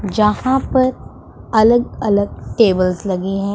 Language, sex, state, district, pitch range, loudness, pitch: Hindi, female, Punjab, Pathankot, 195-240 Hz, -16 LUFS, 210 Hz